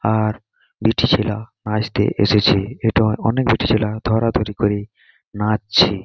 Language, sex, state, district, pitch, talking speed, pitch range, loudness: Bengali, male, West Bengal, Malda, 110 Hz, 120 wpm, 105-110 Hz, -18 LUFS